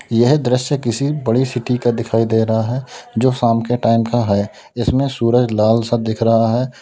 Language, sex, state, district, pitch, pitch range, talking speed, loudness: Hindi, male, Uttar Pradesh, Lalitpur, 120 Hz, 115-125 Hz, 200 wpm, -17 LUFS